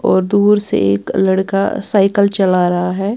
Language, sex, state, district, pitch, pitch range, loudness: Hindi, female, Bihar, Patna, 195 Hz, 180-200 Hz, -14 LUFS